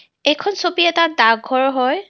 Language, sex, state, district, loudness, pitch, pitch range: Assamese, female, Assam, Kamrup Metropolitan, -16 LUFS, 290 Hz, 255-345 Hz